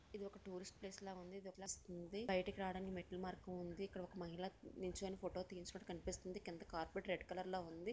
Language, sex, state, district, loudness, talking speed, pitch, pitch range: Telugu, female, Andhra Pradesh, Visakhapatnam, -49 LUFS, 175 wpm, 185 Hz, 180-195 Hz